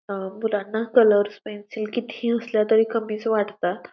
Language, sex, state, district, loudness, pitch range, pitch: Marathi, female, Maharashtra, Pune, -23 LUFS, 205-225 Hz, 215 Hz